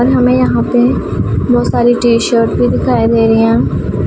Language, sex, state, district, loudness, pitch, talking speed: Hindi, female, Punjab, Pathankot, -11 LUFS, 225 Hz, 175 wpm